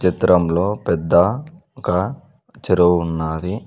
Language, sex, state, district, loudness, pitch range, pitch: Telugu, male, Telangana, Mahabubabad, -18 LUFS, 85-115 Hz, 90 Hz